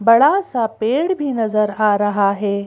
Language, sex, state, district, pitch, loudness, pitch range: Hindi, female, Madhya Pradesh, Bhopal, 220 Hz, -17 LUFS, 205-240 Hz